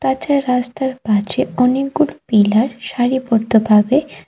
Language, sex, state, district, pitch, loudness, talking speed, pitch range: Bengali, female, Tripura, West Tripura, 245 Hz, -16 LUFS, 85 wpm, 215-265 Hz